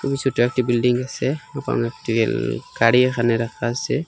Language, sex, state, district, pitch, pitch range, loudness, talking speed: Bengali, male, Assam, Hailakandi, 125 Hz, 115-135 Hz, -21 LUFS, 160 wpm